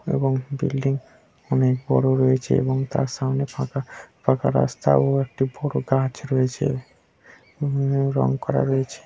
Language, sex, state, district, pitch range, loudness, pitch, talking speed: Bengali, male, West Bengal, Dakshin Dinajpur, 130-135 Hz, -23 LUFS, 135 Hz, 130 wpm